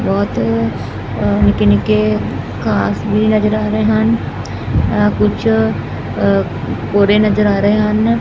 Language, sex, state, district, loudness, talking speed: Punjabi, female, Punjab, Fazilka, -15 LUFS, 110 wpm